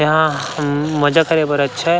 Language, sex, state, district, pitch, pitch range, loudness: Chhattisgarhi, male, Chhattisgarh, Rajnandgaon, 150 Hz, 145-160 Hz, -16 LUFS